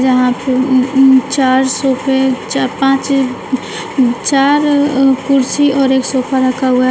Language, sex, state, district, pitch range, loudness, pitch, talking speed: Hindi, female, Uttar Pradesh, Shamli, 255-275 Hz, -12 LUFS, 265 Hz, 150 wpm